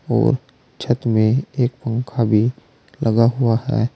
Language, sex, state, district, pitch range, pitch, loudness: Hindi, male, Uttar Pradesh, Saharanpur, 115-130 Hz, 120 Hz, -19 LUFS